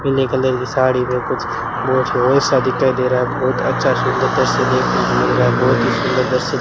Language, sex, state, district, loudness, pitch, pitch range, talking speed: Hindi, male, Rajasthan, Bikaner, -16 LUFS, 130 Hz, 125-130 Hz, 225 wpm